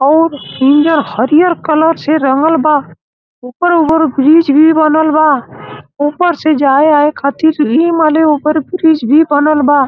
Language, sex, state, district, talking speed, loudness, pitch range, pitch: Bhojpuri, male, Uttar Pradesh, Gorakhpur, 145 wpm, -10 LUFS, 290-320 Hz, 305 Hz